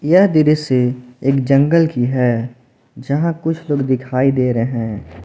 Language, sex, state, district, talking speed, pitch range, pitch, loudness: Hindi, male, Jharkhand, Palamu, 150 wpm, 125-150 Hz, 130 Hz, -16 LUFS